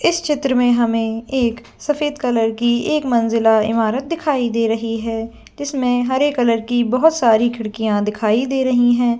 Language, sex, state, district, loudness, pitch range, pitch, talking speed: Hindi, female, Jharkhand, Jamtara, -17 LUFS, 225-265 Hz, 240 Hz, 170 wpm